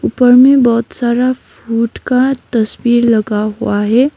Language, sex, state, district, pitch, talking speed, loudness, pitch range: Hindi, female, West Bengal, Darjeeling, 240 Hz, 145 wpm, -12 LUFS, 225-255 Hz